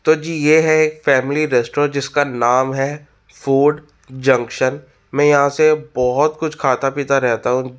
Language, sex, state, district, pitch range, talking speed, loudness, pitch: Hindi, male, Uttar Pradesh, Muzaffarnagar, 130-150 Hz, 160 wpm, -16 LUFS, 140 Hz